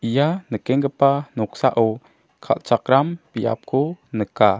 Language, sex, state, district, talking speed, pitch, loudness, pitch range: Garo, male, Meghalaya, South Garo Hills, 80 wpm, 130 Hz, -21 LUFS, 115-140 Hz